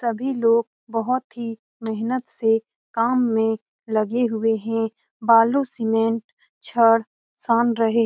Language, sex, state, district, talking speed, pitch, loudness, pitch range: Hindi, female, Bihar, Lakhisarai, 105 wpm, 230 Hz, -22 LUFS, 225-240 Hz